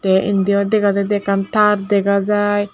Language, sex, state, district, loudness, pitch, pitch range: Chakma, female, Tripura, Dhalai, -16 LUFS, 200 Hz, 200-205 Hz